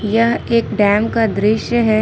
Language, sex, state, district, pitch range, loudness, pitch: Hindi, female, Jharkhand, Ranchi, 210-230 Hz, -15 LUFS, 220 Hz